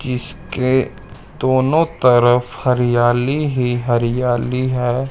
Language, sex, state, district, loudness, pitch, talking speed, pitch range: Hindi, male, Chandigarh, Chandigarh, -17 LUFS, 125 Hz, 80 wpm, 120-130 Hz